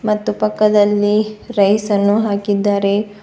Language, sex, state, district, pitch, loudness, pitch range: Kannada, female, Karnataka, Bidar, 205 Hz, -15 LUFS, 205-215 Hz